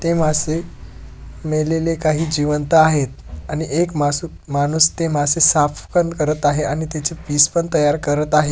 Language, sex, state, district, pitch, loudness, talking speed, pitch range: Marathi, male, Maharashtra, Dhule, 155 Hz, -18 LUFS, 160 wpm, 145-160 Hz